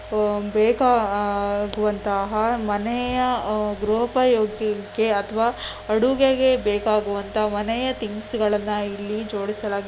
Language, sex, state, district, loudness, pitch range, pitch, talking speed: Kannada, female, Karnataka, Dakshina Kannada, -22 LUFS, 205-235 Hz, 215 Hz, 85 wpm